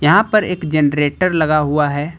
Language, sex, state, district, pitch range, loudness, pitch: Hindi, male, Jharkhand, Ranchi, 150-180 Hz, -16 LUFS, 155 Hz